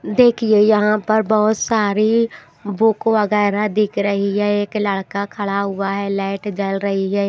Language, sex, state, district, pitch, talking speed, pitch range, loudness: Hindi, female, Maharashtra, Washim, 205 Hz, 155 wpm, 200-215 Hz, -17 LUFS